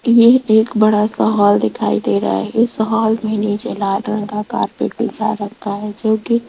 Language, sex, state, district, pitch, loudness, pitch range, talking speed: Hindi, female, Rajasthan, Jaipur, 215 Hz, -16 LUFS, 205-225 Hz, 210 wpm